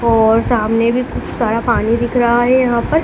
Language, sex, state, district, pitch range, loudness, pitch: Hindi, female, Madhya Pradesh, Dhar, 230-245 Hz, -14 LUFS, 235 Hz